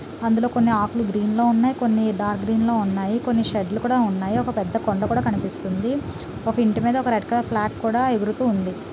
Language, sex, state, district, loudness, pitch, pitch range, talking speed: Telugu, female, Telangana, Nalgonda, -22 LUFS, 225 Hz, 210-240 Hz, 210 wpm